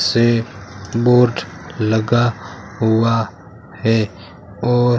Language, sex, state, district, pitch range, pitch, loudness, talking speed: Hindi, male, Rajasthan, Bikaner, 100-120 Hz, 115 Hz, -17 LUFS, 70 wpm